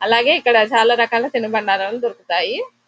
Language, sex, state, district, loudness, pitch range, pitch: Telugu, female, Telangana, Nalgonda, -16 LUFS, 225-250 Hz, 235 Hz